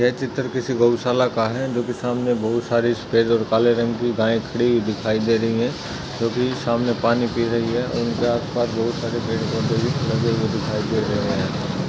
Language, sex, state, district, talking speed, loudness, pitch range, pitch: Hindi, male, Maharashtra, Nagpur, 210 wpm, -21 LUFS, 115-125 Hz, 120 Hz